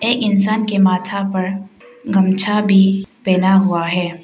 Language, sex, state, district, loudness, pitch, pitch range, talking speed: Hindi, female, Arunachal Pradesh, Papum Pare, -16 LUFS, 195 Hz, 185-205 Hz, 140 wpm